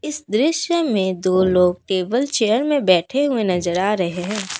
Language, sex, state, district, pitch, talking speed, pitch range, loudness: Hindi, female, Assam, Kamrup Metropolitan, 210 Hz, 170 wpm, 185-280 Hz, -19 LUFS